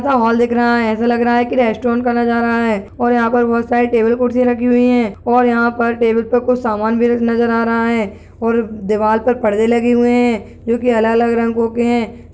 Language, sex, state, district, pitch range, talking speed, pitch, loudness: Hindi, female, Uttarakhand, Tehri Garhwal, 230-240 Hz, 240 wpm, 235 Hz, -15 LUFS